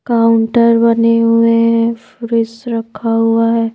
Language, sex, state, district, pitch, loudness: Hindi, female, Madhya Pradesh, Bhopal, 230 Hz, -13 LUFS